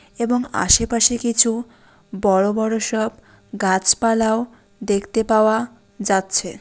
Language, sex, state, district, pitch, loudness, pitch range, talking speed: Bengali, female, West Bengal, Dakshin Dinajpur, 225 Hz, -18 LUFS, 205-230 Hz, 90 wpm